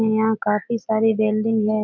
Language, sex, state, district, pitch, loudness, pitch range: Hindi, female, Bihar, Jahanabad, 220 Hz, -20 LUFS, 215-220 Hz